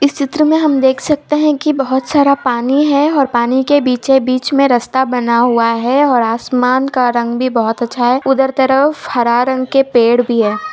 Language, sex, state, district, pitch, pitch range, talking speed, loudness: Hindi, female, Uttar Pradesh, Ghazipur, 260 Hz, 240-280 Hz, 210 wpm, -13 LUFS